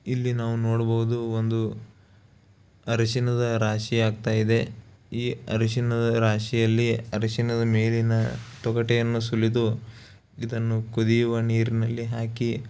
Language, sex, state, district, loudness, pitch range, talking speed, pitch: Kannada, male, Karnataka, Bellary, -25 LUFS, 110-115 Hz, 95 wpm, 115 Hz